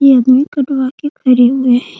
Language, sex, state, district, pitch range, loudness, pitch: Hindi, female, Bihar, Muzaffarpur, 255-280 Hz, -12 LUFS, 265 Hz